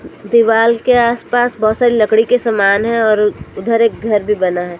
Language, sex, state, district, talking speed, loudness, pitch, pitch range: Hindi, female, Chhattisgarh, Raipur, 200 wpm, -13 LUFS, 225 Hz, 210-235 Hz